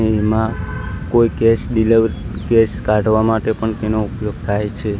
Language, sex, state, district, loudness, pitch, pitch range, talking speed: Gujarati, male, Gujarat, Gandhinagar, -17 LUFS, 110 Hz, 105-115 Hz, 145 wpm